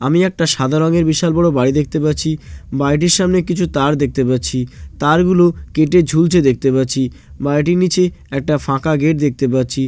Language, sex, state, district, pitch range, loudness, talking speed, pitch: Bengali, male, West Bengal, Jalpaiguri, 135-170 Hz, -15 LUFS, 170 wpm, 150 Hz